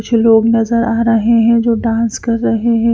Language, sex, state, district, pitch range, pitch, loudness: Hindi, female, Punjab, Fazilka, 225-235 Hz, 230 Hz, -13 LUFS